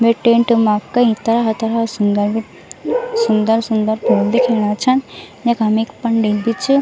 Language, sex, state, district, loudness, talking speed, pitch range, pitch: Garhwali, female, Uttarakhand, Tehri Garhwal, -16 LUFS, 130 wpm, 215-235 Hz, 225 Hz